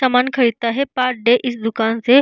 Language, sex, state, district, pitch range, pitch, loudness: Hindi, female, Bihar, Vaishali, 230-255 Hz, 245 Hz, -17 LUFS